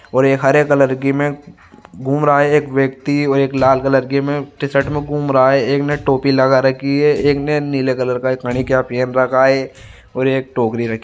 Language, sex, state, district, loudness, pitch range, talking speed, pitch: Marwari, male, Rajasthan, Nagaur, -15 LUFS, 130-145 Hz, 235 wpm, 135 Hz